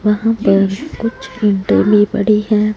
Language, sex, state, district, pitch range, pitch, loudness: Hindi, female, Punjab, Fazilka, 205-225 Hz, 210 Hz, -14 LUFS